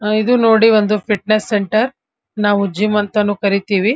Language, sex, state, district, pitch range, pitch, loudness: Kannada, female, Karnataka, Dharwad, 205-220 Hz, 210 Hz, -15 LUFS